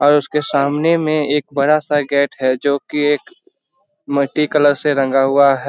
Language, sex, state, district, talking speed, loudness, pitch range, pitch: Hindi, male, Bihar, Jamui, 190 wpm, -16 LUFS, 140-150 Hz, 145 Hz